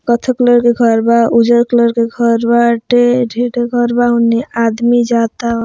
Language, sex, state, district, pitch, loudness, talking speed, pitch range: Bhojpuri, female, Bihar, Muzaffarpur, 235 Hz, -12 LUFS, 180 wpm, 230-240 Hz